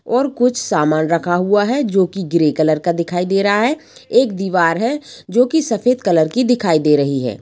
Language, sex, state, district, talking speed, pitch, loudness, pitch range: Hindi, female, Jharkhand, Sahebganj, 220 wpm, 190 Hz, -16 LUFS, 165-245 Hz